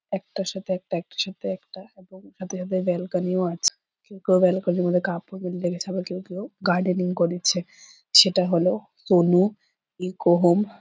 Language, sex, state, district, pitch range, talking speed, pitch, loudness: Bengali, female, West Bengal, Purulia, 180-190 Hz, 160 wpm, 185 Hz, -23 LUFS